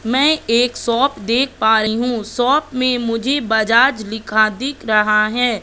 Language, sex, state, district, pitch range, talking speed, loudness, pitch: Hindi, female, Madhya Pradesh, Katni, 220-255 Hz, 160 wpm, -16 LUFS, 235 Hz